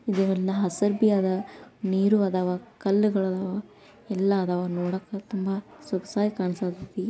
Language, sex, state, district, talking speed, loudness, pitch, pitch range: Kannada, female, Karnataka, Dakshina Kannada, 110 wpm, -26 LUFS, 195 Hz, 185-205 Hz